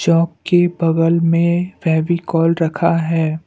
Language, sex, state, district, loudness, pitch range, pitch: Hindi, male, Assam, Kamrup Metropolitan, -16 LUFS, 165-170 Hz, 165 Hz